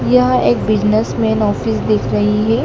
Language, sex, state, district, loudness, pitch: Hindi, male, Madhya Pradesh, Dhar, -15 LUFS, 120 Hz